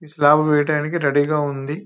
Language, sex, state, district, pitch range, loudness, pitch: Telugu, male, Telangana, Nalgonda, 145-155 Hz, -18 LUFS, 150 Hz